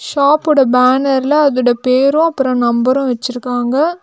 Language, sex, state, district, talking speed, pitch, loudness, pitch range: Tamil, female, Tamil Nadu, Nilgiris, 105 wpm, 265 Hz, -13 LUFS, 250-290 Hz